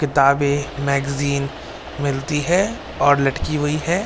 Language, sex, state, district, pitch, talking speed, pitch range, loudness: Hindi, male, Bihar, Darbhanga, 145 Hz, 120 wpm, 140-150 Hz, -20 LUFS